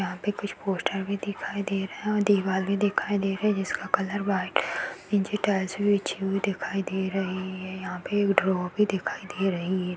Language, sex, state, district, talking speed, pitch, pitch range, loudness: Hindi, female, Chhattisgarh, Rajnandgaon, 215 wpm, 195 Hz, 190-205 Hz, -27 LUFS